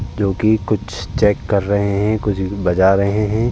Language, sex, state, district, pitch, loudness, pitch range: Hindi, male, Uttar Pradesh, Jalaun, 100 Hz, -17 LUFS, 100-105 Hz